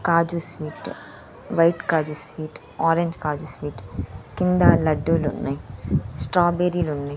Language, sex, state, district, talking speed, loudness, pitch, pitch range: Telugu, female, Andhra Pradesh, Sri Satya Sai, 115 wpm, -23 LUFS, 155 Hz, 140-170 Hz